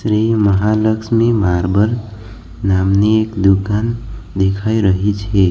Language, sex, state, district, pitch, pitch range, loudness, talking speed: Gujarati, male, Gujarat, Valsad, 105 Hz, 95-110 Hz, -15 LUFS, 100 wpm